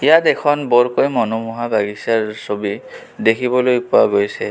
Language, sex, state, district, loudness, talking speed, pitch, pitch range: Assamese, male, Assam, Kamrup Metropolitan, -17 LUFS, 120 wpm, 115 Hz, 105-125 Hz